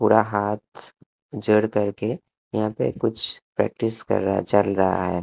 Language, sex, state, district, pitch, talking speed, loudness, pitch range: Hindi, male, Punjab, Kapurthala, 105 Hz, 150 wpm, -23 LUFS, 95-110 Hz